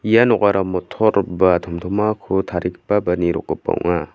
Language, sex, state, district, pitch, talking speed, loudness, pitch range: Garo, male, Meghalaya, West Garo Hills, 95 Hz, 130 wpm, -19 LUFS, 90-105 Hz